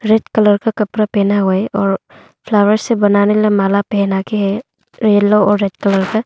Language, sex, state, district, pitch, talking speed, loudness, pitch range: Hindi, female, Arunachal Pradesh, Longding, 205 Hz, 200 wpm, -14 LUFS, 200-215 Hz